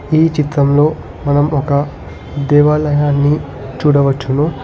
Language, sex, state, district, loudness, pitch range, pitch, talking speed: Telugu, male, Telangana, Hyderabad, -14 LUFS, 140-150 Hz, 145 Hz, 80 wpm